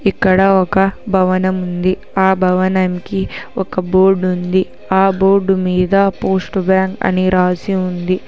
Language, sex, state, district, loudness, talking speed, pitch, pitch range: Telugu, female, Telangana, Hyderabad, -15 LUFS, 125 wpm, 190 Hz, 185-190 Hz